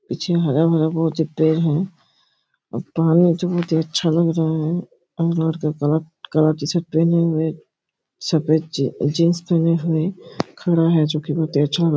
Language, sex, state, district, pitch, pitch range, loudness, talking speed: Hindi, male, Chhattisgarh, Raigarh, 160 Hz, 155-170 Hz, -20 LUFS, 160 wpm